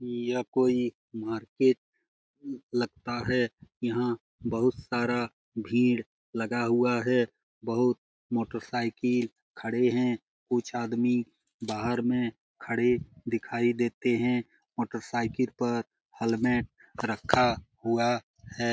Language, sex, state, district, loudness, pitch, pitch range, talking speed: Hindi, male, Bihar, Jamui, -29 LUFS, 120 Hz, 115-125 Hz, 95 wpm